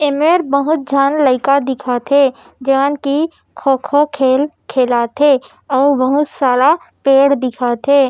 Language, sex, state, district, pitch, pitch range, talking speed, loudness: Chhattisgarhi, female, Chhattisgarh, Raigarh, 275 Hz, 260-285 Hz, 135 wpm, -14 LUFS